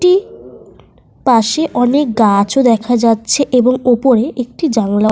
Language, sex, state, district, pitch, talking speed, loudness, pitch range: Bengali, female, Jharkhand, Sahebganj, 245 Hz, 130 wpm, -13 LUFS, 225-275 Hz